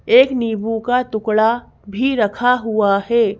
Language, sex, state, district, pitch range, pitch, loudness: Hindi, female, Madhya Pradesh, Bhopal, 215-245 Hz, 225 Hz, -17 LUFS